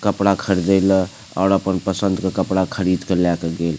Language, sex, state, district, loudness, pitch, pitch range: Maithili, male, Bihar, Supaul, -19 LUFS, 95 Hz, 90-95 Hz